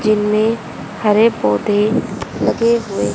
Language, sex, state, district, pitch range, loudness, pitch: Hindi, female, Haryana, Rohtak, 205-225 Hz, -16 LUFS, 215 Hz